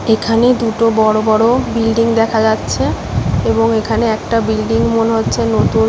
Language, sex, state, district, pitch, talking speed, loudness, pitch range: Bengali, female, West Bengal, Paschim Medinipur, 225 Hz, 155 wpm, -14 LUFS, 220-230 Hz